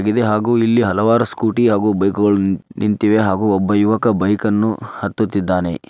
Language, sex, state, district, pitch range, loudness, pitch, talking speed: Kannada, male, Karnataka, Dharwad, 100-110 Hz, -16 LUFS, 105 Hz, 120 wpm